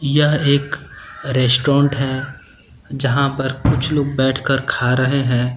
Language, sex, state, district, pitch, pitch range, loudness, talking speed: Hindi, male, Uttar Pradesh, Lucknow, 135 Hz, 130-140 Hz, -17 LUFS, 130 wpm